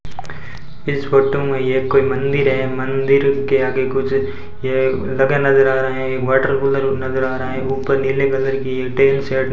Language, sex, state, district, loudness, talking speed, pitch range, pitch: Hindi, male, Rajasthan, Bikaner, -17 LUFS, 200 wpm, 130-135 Hz, 135 Hz